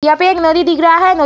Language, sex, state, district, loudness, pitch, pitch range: Hindi, female, Uttar Pradesh, Etah, -11 LUFS, 335 Hz, 320-360 Hz